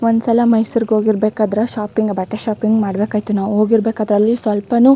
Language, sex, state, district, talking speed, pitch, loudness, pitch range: Kannada, female, Karnataka, Chamarajanagar, 180 wpm, 215 Hz, -16 LUFS, 210-225 Hz